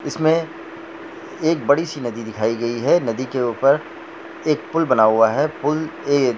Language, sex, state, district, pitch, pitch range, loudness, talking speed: Hindi, male, Jharkhand, Jamtara, 145 Hz, 120-165 Hz, -19 LUFS, 170 wpm